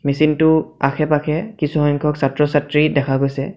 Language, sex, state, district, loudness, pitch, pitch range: Assamese, male, Assam, Sonitpur, -17 LUFS, 150 Hz, 140-155 Hz